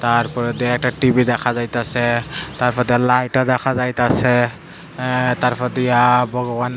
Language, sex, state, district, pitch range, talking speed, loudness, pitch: Bengali, male, Tripura, Dhalai, 120-125 Hz, 150 wpm, -18 LUFS, 125 Hz